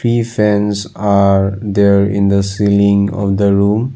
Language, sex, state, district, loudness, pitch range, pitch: English, male, Assam, Sonitpur, -13 LUFS, 100-105 Hz, 100 Hz